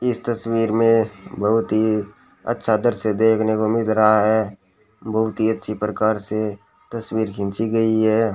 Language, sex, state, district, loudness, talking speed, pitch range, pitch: Hindi, male, Rajasthan, Bikaner, -20 LUFS, 150 wpm, 110-115 Hz, 110 Hz